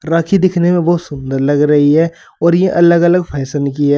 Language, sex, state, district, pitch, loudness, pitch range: Hindi, male, Uttar Pradesh, Saharanpur, 165 Hz, -13 LUFS, 145-170 Hz